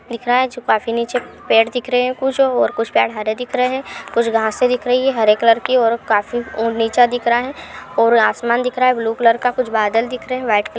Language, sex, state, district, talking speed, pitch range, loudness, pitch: Hindi, female, Uttar Pradesh, Hamirpur, 270 wpm, 230-250 Hz, -17 LUFS, 235 Hz